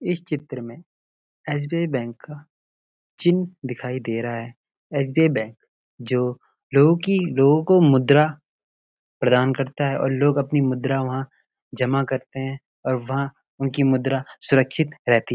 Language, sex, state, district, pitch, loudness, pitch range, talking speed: Hindi, male, Uttarakhand, Uttarkashi, 135 Hz, -22 LUFS, 125-150 Hz, 140 wpm